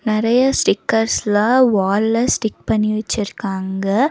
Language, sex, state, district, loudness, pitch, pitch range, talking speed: Tamil, female, Tamil Nadu, Nilgiris, -17 LUFS, 215 Hz, 205-230 Hz, 90 wpm